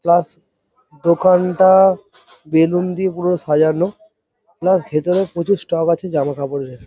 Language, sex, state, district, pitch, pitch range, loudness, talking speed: Bengali, male, West Bengal, Jhargram, 175 Hz, 160-190 Hz, -16 LUFS, 120 wpm